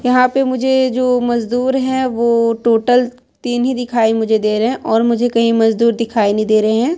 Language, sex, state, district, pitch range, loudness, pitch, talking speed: Hindi, female, Chhattisgarh, Raipur, 225-255 Hz, -15 LUFS, 240 Hz, 205 wpm